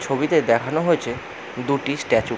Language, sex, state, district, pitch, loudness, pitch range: Bengali, male, West Bengal, Jalpaiguri, 135 Hz, -21 LUFS, 120-150 Hz